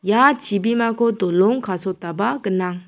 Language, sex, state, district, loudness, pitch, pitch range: Garo, female, Meghalaya, South Garo Hills, -19 LUFS, 200 Hz, 185-230 Hz